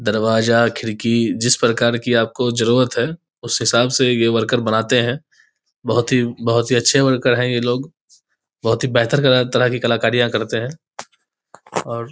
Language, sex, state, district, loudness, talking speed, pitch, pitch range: Hindi, male, Bihar, Begusarai, -17 LUFS, 165 wpm, 120 Hz, 115-125 Hz